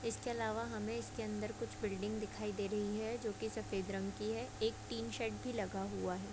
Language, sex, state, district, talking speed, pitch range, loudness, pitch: Hindi, female, Bihar, Vaishali, 225 wpm, 195-220 Hz, -41 LUFS, 210 Hz